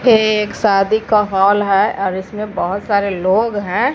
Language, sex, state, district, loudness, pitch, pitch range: Hindi, female, Bihar, Katihar, -15 LUFS, 205 Hz, 195-215 Hz